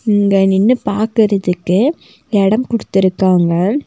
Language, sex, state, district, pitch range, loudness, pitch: Tamil, female, Tamil Nadu, Nilgiris, 190-225 Hz, -14 LUFS, 200 Hz